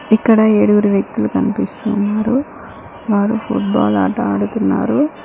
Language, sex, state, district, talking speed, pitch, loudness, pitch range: Telugu, female, Telangana, Mahabubabad, 90 wpm, 210 Hz, -15 LUFS, 195-225 Hz